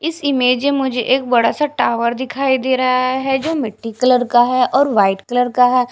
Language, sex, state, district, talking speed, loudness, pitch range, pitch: Hindi, female, Punjab, Fazilka, 215 wpm, -16 LUFS, 245-270 Hz, 255 Hz